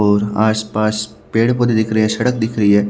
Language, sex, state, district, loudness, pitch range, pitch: Hindi, male, Haryana, Charkhi Dadri, -16 LUFS, 105-110 Hz, 110 Hz